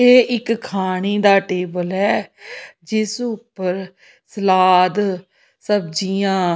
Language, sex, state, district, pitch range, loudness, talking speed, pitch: Punjabi, female, Punjab, Pathankot, 185-215 Hz, -18 LUFS, 100 wpm, 195 Hz